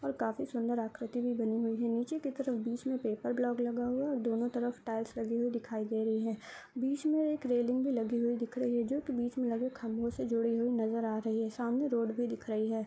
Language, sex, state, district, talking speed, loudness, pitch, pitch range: Hindi, male, Uttar Pradesh, Hamirpur, 260 wpm, -34 LUFS, 235 Hz, 225-245 Hz